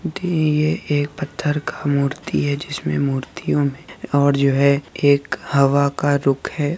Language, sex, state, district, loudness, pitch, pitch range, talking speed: Hindi, male, Bihar, Saharsa, -19 LUFS, 145 Hz, 140-150 Hz, 150 wpm